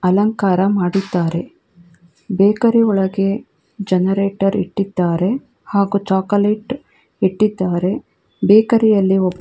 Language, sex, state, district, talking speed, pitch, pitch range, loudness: Kannada, female, Karnataka, Bangalore, 75 wpm, 195 Hz, 185-210 Hz, -17 LUFS